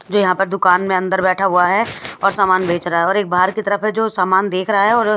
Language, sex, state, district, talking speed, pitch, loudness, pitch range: Hindi, female, Haryana, Rohtak, 300 wpm, 190 Hz, -16 LUFS, 185-205 Hz